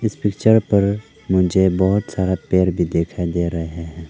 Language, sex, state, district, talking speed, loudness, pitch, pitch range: Hindi, male, Arunachal Pradesh, Lower Dibang Valley, 175 wpm, -19 LUFS, 95 Hz, 85-105 Hz